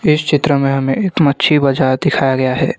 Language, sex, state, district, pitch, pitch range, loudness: Hindi, male, Maharashtra, Gondia, 140 Hz, 135-155 Hz, -14 LUFS